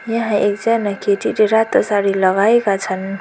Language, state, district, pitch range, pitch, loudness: Nepali, West Bengal, Darjeeling, 195-220 Hz, 205 Hz, -16 LUFS